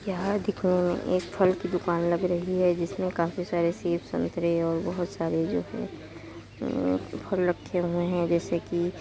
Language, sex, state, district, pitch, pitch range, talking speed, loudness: Hindi, female, Uttar Pradesh, Muzaffarnagar, 175 Hz, 170-180 Hz, 180 wpm, -28 LUFS